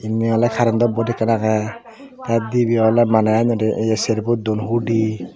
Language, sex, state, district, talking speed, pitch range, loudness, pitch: Chakma, male, Tripura, Dhalai, 170 wpm, 110-120 Hz, -18 LUFS, 115 Hz